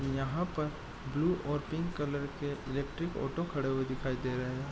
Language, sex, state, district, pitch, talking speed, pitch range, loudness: Hindi, male, Bihar, East Champaran, 140 Hz, 190 wpm, 135-155 Hz, -35 LUFS